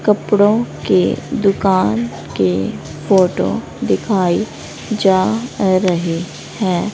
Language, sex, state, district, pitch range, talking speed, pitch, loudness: Hindi, female, Haryana, Rohtak, 165-205 Hz, 80 wpm, 185 Hz, -16 LUFS